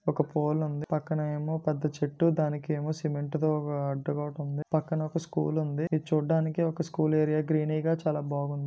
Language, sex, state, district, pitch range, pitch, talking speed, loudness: Telugu, male, Andhra Pradesh, Guntur, 150-155 Hz, 155 Hz, 175 wpm, -29 LUFS